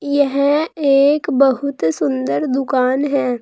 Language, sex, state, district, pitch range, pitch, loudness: Hindi, female, Uttar Pradesh, Saharanpur, 255-285 Hz, 275 Hz, -16 LUFS